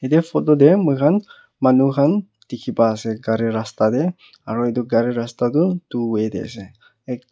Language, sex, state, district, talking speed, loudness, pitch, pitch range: Nagamese, male, Nagaland, Kohima, 155 wpm, -19 LUFS, 120 Hz, 115-150 Hz